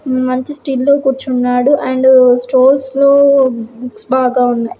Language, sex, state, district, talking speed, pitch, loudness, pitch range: Telugu, female, Andhra Pradesh, Srikakulam, 135 wpm, 260 Hz, -12 LUFS, 250-270 Hz